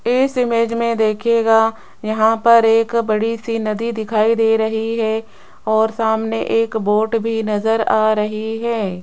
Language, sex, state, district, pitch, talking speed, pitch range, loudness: Hindi, female, Rajasthan, Jaipur, 225 Hz, 155 wpm, 220-230 Hz, -17 LUFS